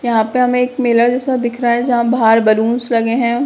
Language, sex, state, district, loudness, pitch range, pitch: Hindi, female, Bihar, Begusarai, -14 LUFS, 230-250 Hz, 240 Hz